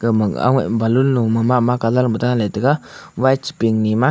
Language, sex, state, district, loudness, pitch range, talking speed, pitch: Wancho, male, Arunachal Pradesh, Longding, -17 LUFS, 115-125 Hz, 190 wpm, 115 Hz